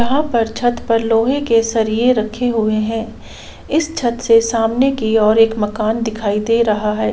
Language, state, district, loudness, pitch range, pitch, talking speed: Santali, Jharkhand, Sahebganj, -16 LUFS, 220-240 Hz, 225 Hz, 185 wpm